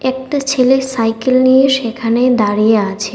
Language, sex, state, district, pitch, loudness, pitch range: Bengali, female, Tripura, West Tripura, 250 Hz, -13 LUFS, 225-265 Hz